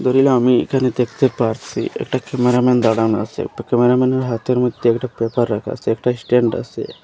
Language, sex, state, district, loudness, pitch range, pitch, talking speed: Bengali, male, Assam, Hailakandi, -17 LUFS, 115-130 Hz, 125 Hz, 160 wpm